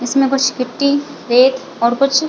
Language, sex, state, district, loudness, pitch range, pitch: Hindi, female, Chhattisgarh, Bilaspur, -15 LUFS, 250-275 Hz, 270 Hz